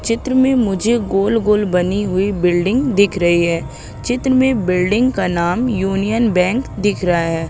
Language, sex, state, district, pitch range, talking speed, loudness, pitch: Hindi, female, Madhya Pradesh, Katni, 180-235 Hz, 160 wpm, -16 LUFS, 200 Hz